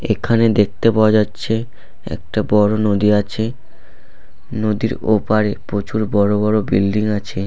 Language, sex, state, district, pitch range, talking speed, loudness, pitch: Bengali, male, West Bengal, Purulia, 105-110 Hz, 120 wpm, -17 LUFS, 110 Hz